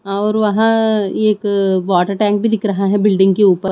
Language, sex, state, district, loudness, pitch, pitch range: Hindi, female, Chhattisgarh, Raipur, -14 LUFS, 205 Hz, 195-215 Hz